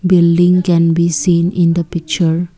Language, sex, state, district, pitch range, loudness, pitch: English, female, Assam, Kamrup Metropolitan, 170-175 Hz, -13 LUFS, 170 Hz